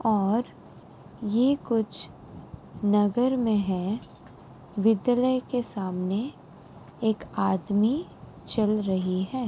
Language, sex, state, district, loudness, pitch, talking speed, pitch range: Hindi, female, Uttar Pradesh, Muzaffarnagar, -26 LUFS, 220 Hz, 90 wpm, 200-245 Hz